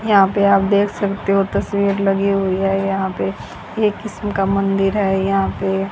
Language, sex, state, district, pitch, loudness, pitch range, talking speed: Hindi, female, Haryana, Jhajjar, 195 Hz, -18 LUFS, 195-200 Hz, 195 wpm